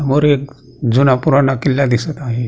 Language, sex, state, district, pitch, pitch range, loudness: Marathi, male, Maharashtra, Pune, 135 Hz, 125-140 Hz, -15 LUFS